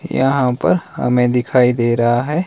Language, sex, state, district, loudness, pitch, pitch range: Hindi, male, Himachal Pradesh, Shimla, -16 LUFS, 125 Hz, 120-130 Hz